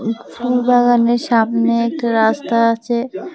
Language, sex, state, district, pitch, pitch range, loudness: Bengali, female, Tripura, West Tripura, 235 Hz, 230-245 Hz, -16 LUFS